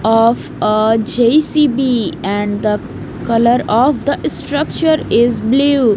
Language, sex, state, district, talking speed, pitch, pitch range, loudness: English, female, Haryana, Jhajjar, 110 wpm, 235 Hz, 220-270 Hz, -14 LUFS